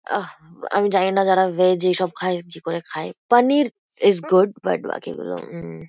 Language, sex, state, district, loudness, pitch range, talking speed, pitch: Bengali, female, West Bengal, Kolkata, -20 LUFS, 170-200 Hz, 175 wpm, 185 Hz